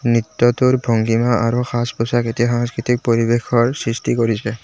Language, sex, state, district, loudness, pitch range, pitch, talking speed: Assamese, male, Assam, Kamrup Metropolitan, -17 LUFS, 115-120 Hz, 120 Hz, 130 wpm